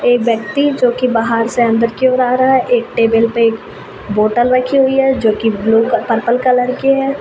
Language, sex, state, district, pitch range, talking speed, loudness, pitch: Hindi, female, Uttar Pradesh, Ghazipur, 230-255 Hz, 210 wpm, -13 LUFS, 240 Hz